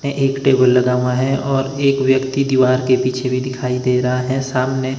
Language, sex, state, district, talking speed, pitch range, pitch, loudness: Hindi, male, Himachal Pradesh, Shimla, 205 wpm, 125-135 Hz, 130 Hz, -16 LUFS